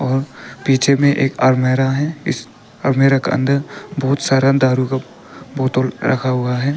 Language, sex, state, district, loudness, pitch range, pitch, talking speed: Hindi, male, Arunachal Pradesh, Papum Pare, -17 LUFS, 130-140 Hz, 135 Hz, 160 wpm